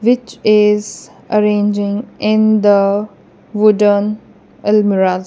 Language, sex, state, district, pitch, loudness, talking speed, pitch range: English, female, Punjab, Kapurthala, 210 Hz, -14 LUFS, 80 wpm, 205-215 Hz